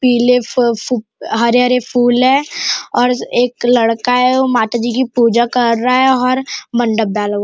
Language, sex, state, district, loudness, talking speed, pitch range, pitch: Hindi, male, Maharashtra, Nagpur, -14 LUFS, 185 wpm, 235-250 Hz, 245 Hz